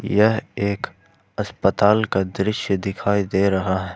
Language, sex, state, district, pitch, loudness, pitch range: Hindi, male, Jharkhand, Ranchi, 100 Hz, -21 LUFS, 95-105 Hz